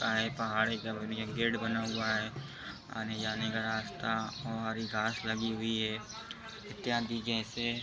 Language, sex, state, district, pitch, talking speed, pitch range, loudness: Hindi, male, Uttar Pradesh, Etah, 110 Hz, 175 wpm, 110-115 Hz, -35 LUFS